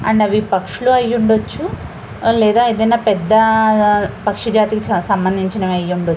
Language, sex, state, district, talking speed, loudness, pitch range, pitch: Telugu, female, Andhra Pradesh, Visakhapatnam, 95 wpm, -15 LUFS, 190-220 Hz, 215 Hz